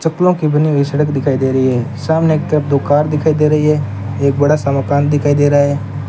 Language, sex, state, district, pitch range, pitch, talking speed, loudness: Hindi, male, Rajasthan, Bikaner, 135-150 Hz, 145 Hz, 245 wpm, -14 LUFS